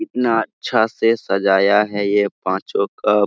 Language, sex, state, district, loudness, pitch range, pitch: Hindi, male, Jharkhand, Sahebganj, -18 LUFS, 100-115 Hz, 105 Hz